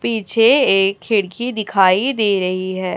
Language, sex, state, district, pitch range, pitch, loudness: Hindi, female, Chhattisgarh, Raipur, 185-225 Hz, 200 Hz, -16 LUFS